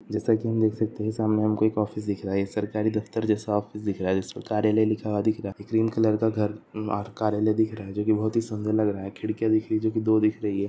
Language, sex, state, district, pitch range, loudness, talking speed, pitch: Hindi, male, Maharashtra, Aurangabad, 105-110 Hz, -26 LUFS, 265 wpm, 110 Hz